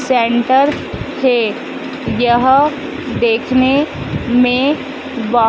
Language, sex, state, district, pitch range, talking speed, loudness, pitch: Hindi, female, Madhya Pradesh, Dhar, 240-280 Hz, 65 wpm, -15 LUFS, 255 Hz